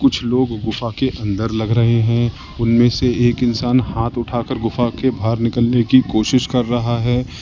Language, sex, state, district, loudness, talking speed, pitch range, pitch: Hindi, male, Uttar Pradesh, Lalitpur, -17 LUFS, 185 wpm, 115-125 Hz, 120 Hz